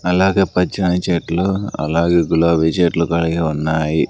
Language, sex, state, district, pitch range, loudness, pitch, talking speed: Telugu, male, Andhra Pradesh, Sri Satya Sai, 80-90 Hz, -17 LUFS, 85 Hz, 115 wpm